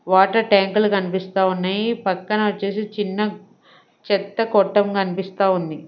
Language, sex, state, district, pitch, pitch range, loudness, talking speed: Telugu, female, Andhra Pradesh, Sri Satya Sai, 200 Hz, 190-210 Hz, -20 LUFS, 110 wpm